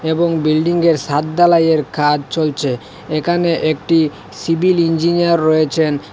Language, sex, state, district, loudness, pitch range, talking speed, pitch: Bengali, male, Assam, Hailakandi, -15 LUFS, 150-170 Hz, 105 wpm, 160 Hz